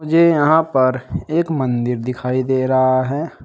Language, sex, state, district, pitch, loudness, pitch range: Hindi, male, Uttar Pradesh, Saharanpur, 130 Hz, -17 LUFS, 130-160 Hz